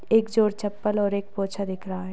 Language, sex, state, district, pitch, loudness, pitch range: Hindi, female, Maharashtra, Sindhudurg, 200 Hz, -25 LUFS, 195-210 Hz